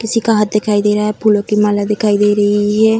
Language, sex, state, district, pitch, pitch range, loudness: Hindi, female, Bihar, Darbhanga, 210 Hz, 205-215 Hz, -13 LUFS